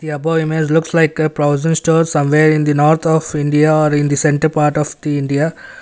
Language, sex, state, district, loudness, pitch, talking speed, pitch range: English, male, Karnataka, Bangalore, -14 LUFS, 155 Hz, 215 wpm, 150-160 Hz